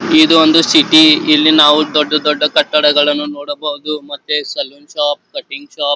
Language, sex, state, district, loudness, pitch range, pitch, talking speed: Kannada, male, Karnataka, Belgaum, -11 LUFS, 145-240 Hz, 150 Hz, 140 wpm